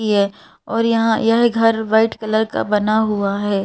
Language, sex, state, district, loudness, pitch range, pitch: Hindi, female, Madhya Pradesh, Bhopal, -17 LUFS, 205-225 Hz, 220 Hz